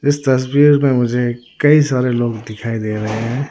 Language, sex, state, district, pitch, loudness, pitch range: Hindi, male, Arunachal Pradesh, Lower Dibang Valley, 125 Hz, -16 LUFS, 115-140 Hz